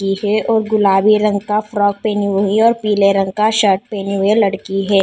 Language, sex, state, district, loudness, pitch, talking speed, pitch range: Hindi, female, Maharashtra, Mumbai Suburban, -15 LUFS, 205 Hz, 215 wpm, 195-215 Hz